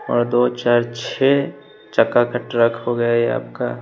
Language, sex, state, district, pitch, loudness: Hindi, male, Bihar, West Champaran, 120 Hz, -18 LUFS